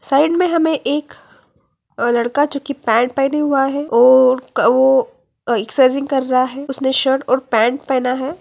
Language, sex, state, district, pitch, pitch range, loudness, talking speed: Hindi, female, Bihar, Jamui, 265 Hz, 255-280 Hz, -16 LUFS, 165 wpm